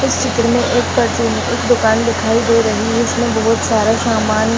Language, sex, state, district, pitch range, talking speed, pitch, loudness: Hindi, female, Uttar Pradesh, Deoria, 220-235 Hz, 210 wpm, 225 Hz, -15 LUFS